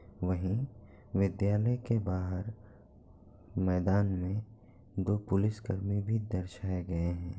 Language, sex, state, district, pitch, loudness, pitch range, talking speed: Hindi, male, Bihar, Kishanganj, 100 Hz, -33 LUFS, 90-105 Hz, 95 wpm